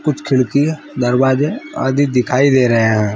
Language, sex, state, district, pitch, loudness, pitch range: Hindi, male, Chhattisgarh, Rajnandgaon, 135 Hz, -15 LUFS, 125-145 Hz